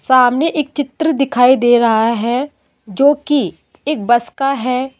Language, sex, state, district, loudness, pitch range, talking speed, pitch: Hindi, female, Rajasthan, Jaipur, -15 LUFS, 240-290 Hz, 155 wpm, 265 Hz